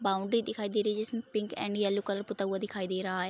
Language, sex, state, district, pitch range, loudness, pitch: Hindi, female, Bihar, Sitamarhi, 195-215 Hz, -32 LUFS, 205 Hz